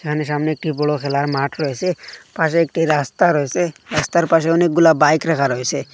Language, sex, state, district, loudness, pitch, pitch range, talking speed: Bengali, male, Assam, Hailakandi, -17 LUFS, 155 Hz, 145-165 Hz, 170 wpm